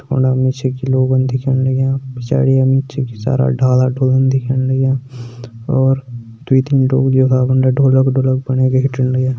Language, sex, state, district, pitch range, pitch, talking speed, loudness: Hindi, male, Uttarakhand, Tehri Garhwal, 130-135 Hz, 130 Hz, 160 wpm, -15 LUFS